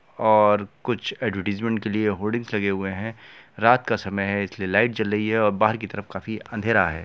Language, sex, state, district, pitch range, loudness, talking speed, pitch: Hindi, male, Bihar, Gopalganj, 100-110 Hz, -23 LUFS, 210 wpm, 105 Hz